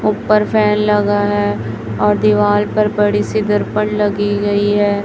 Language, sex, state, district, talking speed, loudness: Hindi, male, Chhattisgarh, Raipur, 155 wpm, -15 LUFS